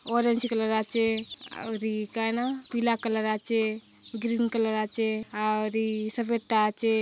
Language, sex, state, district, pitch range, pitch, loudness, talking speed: Halbi, female, Chhattisgarh, Bastar, 215-235 Hz, 225 Hz, -28 LUFS, 130 wpm